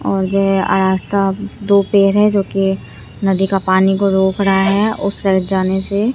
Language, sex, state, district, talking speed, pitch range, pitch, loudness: Hindi, female, Bihar, Katihar, 165 wpm, 190-200 Hz, 195 Hz, -15 LUFS